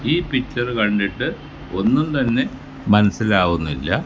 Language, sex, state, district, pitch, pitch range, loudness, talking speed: Malayalam, male, Kerala, Kasaragod, 115 Hz, 100-130 Hz, -19 LUFS, 90 wpm